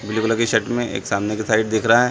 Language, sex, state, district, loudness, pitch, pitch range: Hindi, male, Chhattisgarh, Sarguja, -20 LUFS, 110 Hz, 105-115 Hz